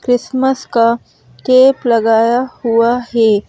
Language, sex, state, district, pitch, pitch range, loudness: Hindi, female, Madhya Pradesh, Bhopal, 235 Hz, 230-255 Hz, -13 LUFS